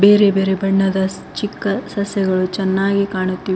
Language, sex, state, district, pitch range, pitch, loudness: Kannada, female, Karnataka, Koppal, 190-200 Hz, 195 Hz, -18 LUFS